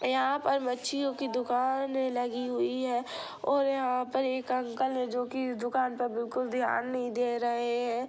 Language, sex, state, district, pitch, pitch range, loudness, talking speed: Hindi, female, Bihar, Sitamarhi, 250 Hz, 245-260 Hz, -31 LUFS, 180 wpm